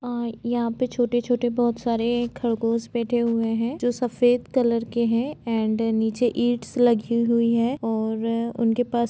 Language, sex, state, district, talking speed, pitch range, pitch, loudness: Hindi, female, Jharkhand, Jamtara, 150 wpm, 230-240 Hz, 235 Hz, -23 LUFS